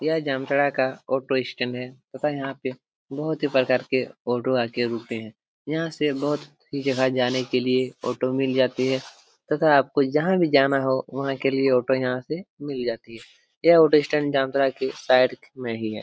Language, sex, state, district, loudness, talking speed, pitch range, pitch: Hindi, male, Jharkhand, Jamtara, -23 LUFS, 200 wpm, 125-145 Hz, 130 Hz